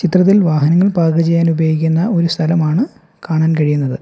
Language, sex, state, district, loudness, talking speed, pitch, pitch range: Malayalam, male, Kerala, Kollam, -14 LUFS, 120 wpm, 165 Hz, 160-175 Hz